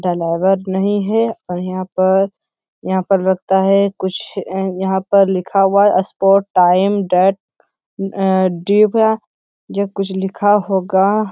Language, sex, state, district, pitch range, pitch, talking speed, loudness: Hindi, male, Bihar, Lakhisarai, 185-200 Hz, 190 Hz, 125 wpm, -16 LUFS